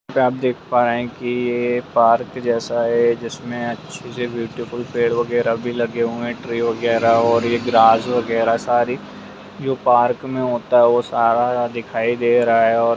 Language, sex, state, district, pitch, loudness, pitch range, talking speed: Hindi, male, Bihar, Jamui, 120 Hz, -18 LUFS, 115-120 Hz, 180 wpm